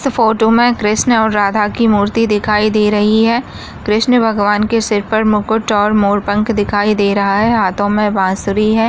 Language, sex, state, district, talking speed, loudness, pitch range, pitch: Hindi, female, Maharashtra, Nagpur, 195 wpm, -13 LUFS, 205-225 Hz, 210 Hz